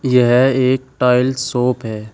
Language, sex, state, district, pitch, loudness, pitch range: Hindi, male, Uttar Pradesh, Shamli, 125 Hz, -15 LUFS, 125-130 Hz